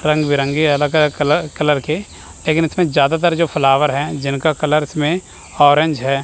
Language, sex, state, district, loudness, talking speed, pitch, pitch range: Hindi, male, Chandigarh, Chandigarh, -16 LUFS, 165 wpm, 150 Hz, 145-155 Hz